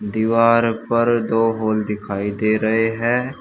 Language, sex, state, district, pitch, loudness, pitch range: Hindi, male, Uttar Pradesh, Shamli, 115 Hz, -19 LUFS, 110-115 Hz